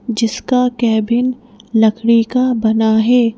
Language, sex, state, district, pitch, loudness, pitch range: Hindi, female, Madhya Pradesh, Bhopal, 230 Hz, -14 LUFS, 220-245 Hz